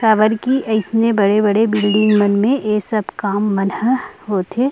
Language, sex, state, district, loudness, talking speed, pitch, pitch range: Chhattisgarhi, female, Chhattisgarh, Rajnandgaon, -16 LUFS, 180 wpm, 215 Hz, 205-225 Hz